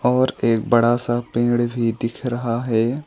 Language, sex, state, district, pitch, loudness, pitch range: Hindi, male, West Bengal, Alipurduar, 120 Hz, -20 LUFS, 115-120 Hz